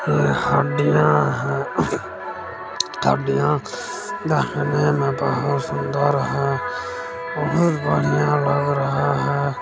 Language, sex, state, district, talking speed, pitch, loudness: Maithili, male, Bihar, Supaul, 100 wpm, 125 Hz, -21 LUFS